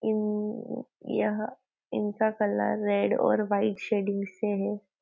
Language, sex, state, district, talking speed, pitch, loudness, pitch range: Hindi, female, Maharashtra, Nagpur, 120 wpm, 210 Hz, -29 LUFS, 200-215 Hz